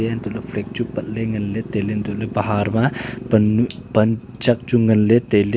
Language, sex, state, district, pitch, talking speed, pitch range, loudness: Wancho, male, Arunachal Pradesh, Longding, 110 Hz, 235 wpm, 105-115 Hz, -20 LUFS